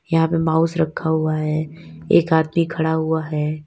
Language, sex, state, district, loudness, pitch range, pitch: Hindi, female, Uttar Pradesh, Lalitpur, -19 LUFS, 155-165 Hz, 160 Hz